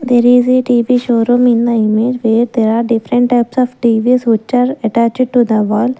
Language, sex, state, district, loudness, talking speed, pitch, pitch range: English, female, Maharashtra, Gondia, -12 LUFS, 210 wpm, 240 Hz, 230-250 Hz